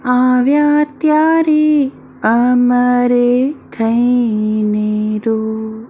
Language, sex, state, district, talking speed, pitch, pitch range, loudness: Gujarati, female, Maharashtra, Mumbai Suburban, 50 wpm, 245 Hz, 220-285 Hz, -14 LUFS